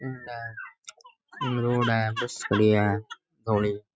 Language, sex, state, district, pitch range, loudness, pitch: Rajasthani, male, Rajasthan, Nagaur, 105-120 Hz, -26 LUFS, 115 Hz